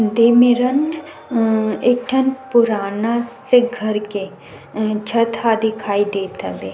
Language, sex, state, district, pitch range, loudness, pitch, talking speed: Chhattisgarhi, female, Chhattisgarh, Sukma, 215-245 Hz, -17 LUFS, 230 Hz, 125 wpm